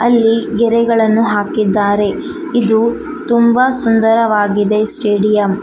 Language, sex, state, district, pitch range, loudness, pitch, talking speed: Kannada, female, Karnataka, Koppal, 210-235 Hz, -13 LUFS, 225 Hz, 75 wpm